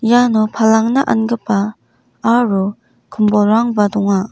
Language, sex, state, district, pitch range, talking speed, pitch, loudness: Garo, female, Meghalaya, West Garo Hills, 200-230 Hz, 85 wpm, 215 Hz, -15 LUFS